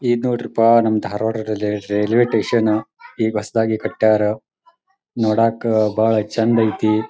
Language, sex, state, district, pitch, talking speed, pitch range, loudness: Kannada, male, Karnataka, Dharwad, 110 Hz, 110 wpm, 110-115 Hz, -18 LUFS